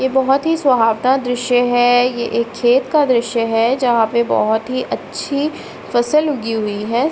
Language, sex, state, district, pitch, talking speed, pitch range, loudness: Hindi, female, Uttar Pradesh, Etah, 245 Hz, 175 wpm, 235-265 Hz, -16 LUFS